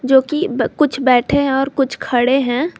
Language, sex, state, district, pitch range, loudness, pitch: Hindi, female, Jharkhand, Garhwa, 255-285 Hz, -16 LUFS, 270 Hz